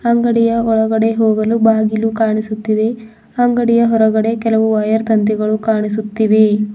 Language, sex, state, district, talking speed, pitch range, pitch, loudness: Kannada, female, Karnataka, Bidar, 100 wpm, 215-225 Hz, 220 Hz, -14 LUFS